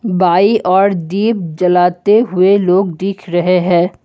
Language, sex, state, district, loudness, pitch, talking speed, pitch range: Hindi, male, Assam, Kamrup Metropolitan, -13 LUFS, 185 Hz, 135 wpm, 180-200 Hz